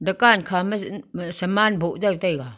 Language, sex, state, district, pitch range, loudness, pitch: Wancho, female, Arunachal Pradesh, Longding, 175-210 Hz, -21 LUFS, 190 Hz